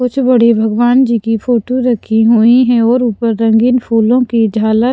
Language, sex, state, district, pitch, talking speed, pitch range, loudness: Hindi, female, Punjab, Pathankot, 235 Hz, 180 wpm, 225-250 Hz, -11 LUFS